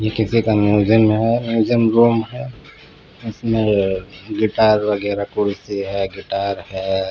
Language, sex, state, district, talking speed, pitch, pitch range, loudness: Hindi, male, Bihar, Patna, 145 wpm, 110 Hz, 100-115 Hz, -18 LUFS